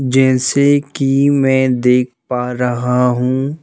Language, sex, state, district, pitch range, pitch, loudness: Hindi, male, Madhya Pradesh, Bhopal, 125-135 Hz, 130 Hz, -14 LUFS